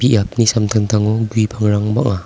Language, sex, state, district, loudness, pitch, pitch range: Garo, male, Meghalaya, South Garo Hills, -16 LUFS, 110 Hz, 105-115 Hz